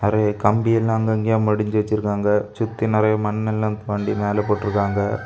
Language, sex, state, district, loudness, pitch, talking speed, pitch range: Tamil, male, Tamil Nadu, Kanyakumari, -20 LUFS, 105 Hz, 150 wpm, 105-110 Hz